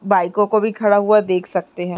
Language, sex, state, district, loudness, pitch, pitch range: Hindi, female, Uttarakhand, Uttarkashi, -17 LUFS, 195 Hz, 175-210 Hz